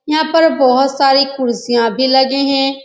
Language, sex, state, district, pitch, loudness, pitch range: Hindi, female, Uttar Pradesh, Etah, 270 Hz, -13 LUFS, 260-275 Hz